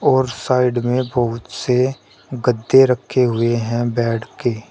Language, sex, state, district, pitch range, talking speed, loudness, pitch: Hindi, male, Uttar Pradesh, Shamli, 115-130 Hz, 140 wpm, -18 LUFS, 120 Hz